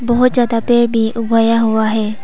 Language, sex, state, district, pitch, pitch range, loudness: Hindi, female, Arunachal Pradesh, Papum Pare, 230 Hz, 220-240 Hz, -14 LUFS